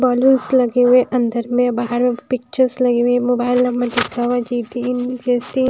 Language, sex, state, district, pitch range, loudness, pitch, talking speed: Hindi, female, Odisha, Nuapada, 245-255 Hz, -17 LUFS, 245 Hz, 190 wpm